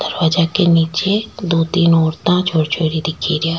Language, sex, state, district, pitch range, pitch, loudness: Rajasthani, female, Rajasthan, Churu, 160-180 Hz, 165 Hz, -16 LUFS